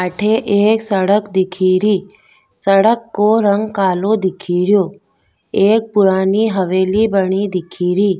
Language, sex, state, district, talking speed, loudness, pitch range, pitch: Rajasthani, female, Rajasthan, Nagaur, 115 wpm, -15 LUFS, 185-210 Hz, 200 Hz